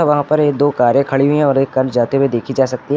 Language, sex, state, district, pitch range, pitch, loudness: Hindi, male, Uttar Pradesh, Lucknow, 130-145 Hz, 135 Hz, -15 LUFS